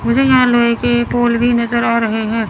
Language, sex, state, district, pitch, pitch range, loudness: Hindi, female, Chandigarh, Chandigarh, 235 Hz, 235-240 Hz, -14 LUFS